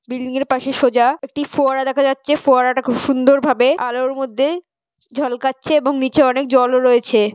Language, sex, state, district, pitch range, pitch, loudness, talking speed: Bengali, female, West Bengal, North 24 Parganas, 255-275 Hz, 265 Hz, -16 LUFS, 165 wpm